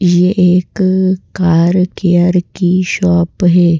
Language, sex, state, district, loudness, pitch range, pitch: Hindi, female, Madhya Pradesh, Bhopal, -12 LUFS, 175-185 Hz, 180 Hz